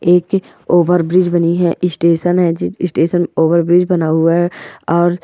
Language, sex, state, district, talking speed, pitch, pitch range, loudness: Hindi, female, Bihar, Bhagalpur, 150 wpm, 175 Hz, 170-175 Hz, -14 LUFS